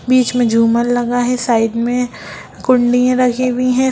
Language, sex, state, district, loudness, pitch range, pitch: Hindi, female, Bihar, Lakhisarai, -15 LUFS, 240-250 Hz, 245 Hz